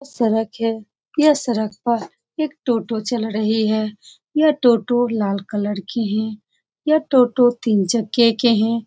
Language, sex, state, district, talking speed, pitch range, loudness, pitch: Hindi, female, Bihar, Saran, 155 wpm, 215-245 Hz, -19 LUFS, 230 Hz